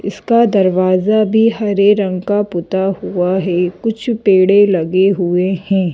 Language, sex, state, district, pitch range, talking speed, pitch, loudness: Hindi, female, Madhya Pradesh, Bhopal, 185-210 Hz, 140 wpm, 195 Hz, -14 LUFS